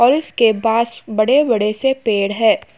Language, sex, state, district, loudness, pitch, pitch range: Hindi, female, Uttar Pradesh, Muzaffarnagar, -16 LUFS, 230 Hz, 215-255 Hz